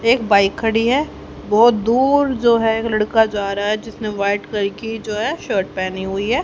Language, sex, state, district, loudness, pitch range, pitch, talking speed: Hindi, female, Haryana, Rohtak, -18 LUFS, 205-230 Hz, 220 Hz, 205 wpm